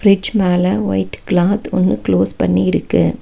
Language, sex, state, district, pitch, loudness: Tamil, female, Tamil Nadu, Nilgiris, 175 Hz, -16 LUFS